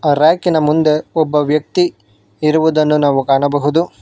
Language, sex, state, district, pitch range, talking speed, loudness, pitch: Kannada, male, Karnataka, Bangalore, 145-160 Hz, 120 wpm, -14 LUFS, 150 Hz